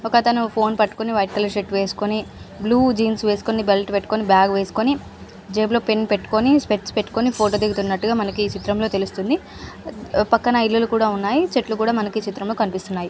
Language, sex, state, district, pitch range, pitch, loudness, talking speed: Telugu, female, Andhra Pradesh, Anantapur, 200-225 Hz, 215 Hz, -20 LUFS, 140 wpm